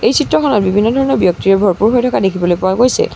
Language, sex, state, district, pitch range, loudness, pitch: Assamese, female, Assam, Sonitpur, 190-245 Hz, -13 LUFS, 200 Hz